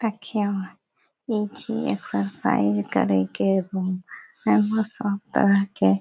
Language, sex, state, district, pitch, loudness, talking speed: Maithili, female, Bihar, Saharsa, 195 Hz, -24 LUFS, 130 wpm